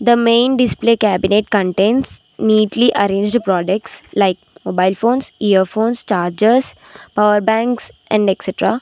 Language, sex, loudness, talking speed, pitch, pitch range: English, female, -15 LUFS, 120 wpm, 215 Hz, 195-235 Hz